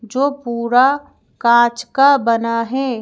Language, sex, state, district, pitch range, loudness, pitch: Hindi, female, Madhya Pradesh, Bhopal, 235-270 Hz, -16 LUFS, 245 Hz